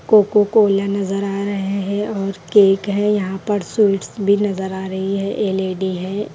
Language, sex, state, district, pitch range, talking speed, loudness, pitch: Hindi, female, Haryana, Rohtak, 195-205 Hz, 190 wpm, -18 LUFS, 200 Hz